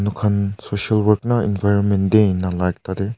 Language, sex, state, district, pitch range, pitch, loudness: Nagamese, male, Nagaland, Kohima, 100-105 Hz, 100 Hz, -19 LUFS